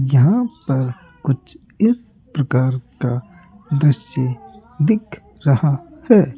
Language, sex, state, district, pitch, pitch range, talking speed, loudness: Hindi, male, Rajasthan, Jaipur, 145 Hz, 130-200 Hz, 95 wpm, -19 LUFS